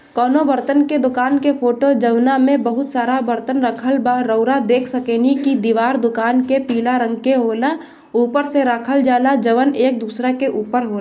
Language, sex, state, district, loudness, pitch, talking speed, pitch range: Bhojpuri, female, Bihar, Gopalganj, -16 LUFS, 250 Hz, 185 wpm, 240-270 Hz